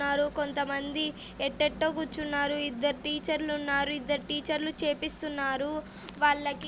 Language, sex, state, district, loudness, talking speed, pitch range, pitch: Telugu, female, Andhra Pradesh, Anantapur, -29 LUFS, 110 wpm, 285-300 Hz, 290 Hz